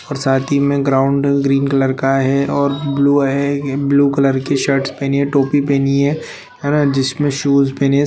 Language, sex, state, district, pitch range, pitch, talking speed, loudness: Hindi, male, Bihar, Bhagalpur, 135-140 Hz, 140 Hz, 195 wpm, -15 LUFS